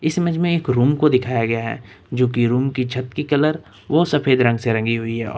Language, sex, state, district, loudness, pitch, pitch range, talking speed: Hindi, male, Uttar Pradesh, Lucknow, -19 LUFS, 125 Hz, 115-150 Hz, 265 wpm